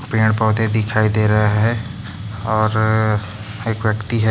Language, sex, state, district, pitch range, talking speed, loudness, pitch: Hindi, male, Maharashtra, Aurangabad, 105-110 Hz, 140 wpm, -18 LUFS, 110 Hz